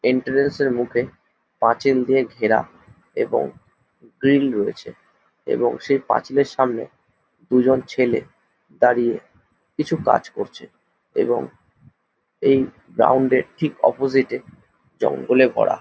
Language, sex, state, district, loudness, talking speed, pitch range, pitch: Bengali, male, West Bengal, Jhargram, -20 LUFS, 110 wpm, 125-140 Hz, 130 Hz